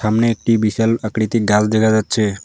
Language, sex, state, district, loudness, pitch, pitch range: Bengali, male, West Bengal, Alipurduar, -16 LUFS, 110 Hz, 105-115 Hz